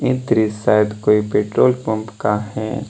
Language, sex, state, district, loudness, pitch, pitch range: Hindi, male, Jharkhand, Deoghar, -18 LUFS, 110 Hz, 105-110 Hz